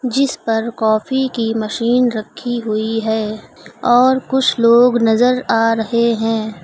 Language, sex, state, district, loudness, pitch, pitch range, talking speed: Hindi, female, Uttar Pradesh, Lucknow, -16 LUFS, 230 Hz, 220-250 Hz, 135 wpm